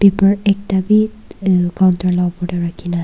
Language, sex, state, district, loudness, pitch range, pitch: Nagamese, female, Nagaland, Kohima, -16 LUFS, 180-200 Hz, 185 Hz